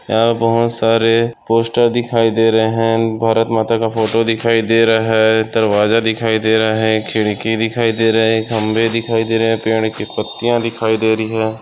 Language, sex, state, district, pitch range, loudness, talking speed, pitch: Hindi, male, Maharashtra, Aurangabad, 110-115 Hz, -15 LUFS, 185 wpm, 115 Hz